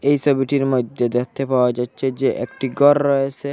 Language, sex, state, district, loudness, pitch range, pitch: Bengali, male, Assam, Hailakandi, -19 LUFS, 125-140 Hz, 135 Hz